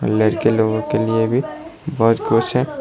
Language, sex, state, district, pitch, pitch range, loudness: Hindi, male, Tripura, Dhalai, 115 Hz, 110-130 Hz, -18 LUFS